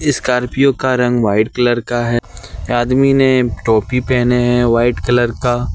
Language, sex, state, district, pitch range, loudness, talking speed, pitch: Hindi, male, Jharkhand, Ranchi, 115-125 Hz, -14 LUFS, 155 wpm, 120 Hz